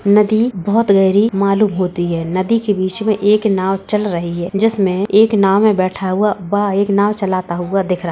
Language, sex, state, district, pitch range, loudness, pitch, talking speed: Hindi, female, Uttar Pradesh, Budaun, 185-210 Hz, -15 LUFS, 200 Hz, 215 wpm